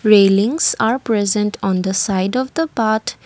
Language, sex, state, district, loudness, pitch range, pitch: English, female, Assam, Kamrup Metropolitan, -17 LUFS, 195-245 Hz, 215 Hz